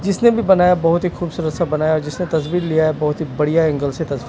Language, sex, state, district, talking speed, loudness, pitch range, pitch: Hindi, male, Delhi, New Delhi, 250 wpm, -17 LUFS, 155-175 Hz, 160 Hz